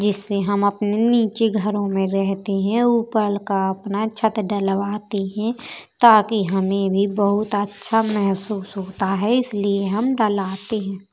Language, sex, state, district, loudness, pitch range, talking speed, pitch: Bundeli, female, Uttar Pradesh, Jalaun, -20 LUFS, 195-220 Hz, 140 wpm, 205 Hz